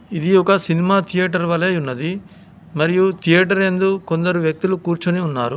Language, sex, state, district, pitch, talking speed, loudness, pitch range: Telugu, male, Telangana, Hyderabad, 180 Hz, 130 wpm, -17 LUFS, 170-190 Hz